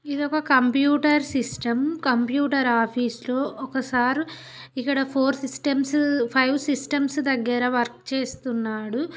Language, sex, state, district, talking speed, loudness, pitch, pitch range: Telugu, female, Telangana, Nalgonda, 110 wpm, -23 LUFS, 265 Hz, 245-285 Hz